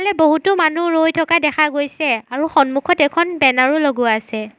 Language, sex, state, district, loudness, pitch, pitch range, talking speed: Assamese, female, Assam, Sonitpur, -16 LUFS, 305 Hz, 270-325 Hz, 185 wpm